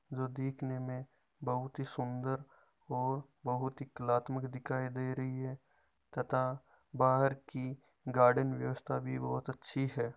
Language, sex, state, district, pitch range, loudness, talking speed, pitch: Marwari, male, Rajasthan, Nagaur, 125-135 Hz, -36 LUFS, 135 wpm, 130 Hz